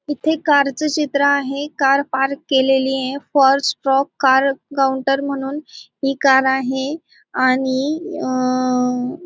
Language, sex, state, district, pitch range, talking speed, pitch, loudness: Marathi, female, Maharashtra, Aurangabad, 265-285 Hz, 115 wpm, 275 Hz, -18 LUFS